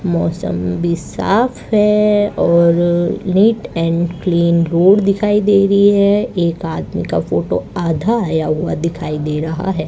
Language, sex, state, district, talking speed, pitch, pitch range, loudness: Hindi, female, Rajasthan, Bikaner, 145 wpm, 175 Hz, 165-200 Hz, -15 LUFS